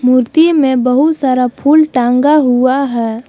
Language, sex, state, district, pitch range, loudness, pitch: Hindi, female, Jharkhand, Palamu, 250-295 Hz, -11 LUFS, 260 Hz